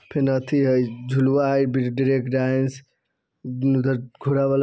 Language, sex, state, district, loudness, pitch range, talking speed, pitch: Bajjika, male, Bihar, Vaishali, -22 LUFS, 130-135 Hz, 90 wpm, 135 Hz